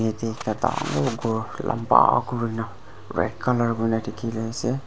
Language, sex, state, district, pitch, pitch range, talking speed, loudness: Nagamese, male, Nagaland, Dimapur, 115 Hz, 110-120 Hz, 125 wpm, -24 LUFS